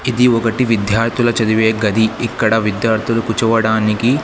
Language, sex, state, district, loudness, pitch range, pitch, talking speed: Telugu, male, Andhra Pradesh, Sri Satya Sai, -15 LUFS, 110-120 Hz, 115 Hz, 115 wpm